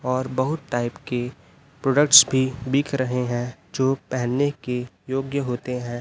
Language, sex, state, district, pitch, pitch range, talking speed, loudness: Hindi, male, Chhattisgarh, Raipur, 130 Hz, 125-140 Hz, 150 wpm, -22 LUFS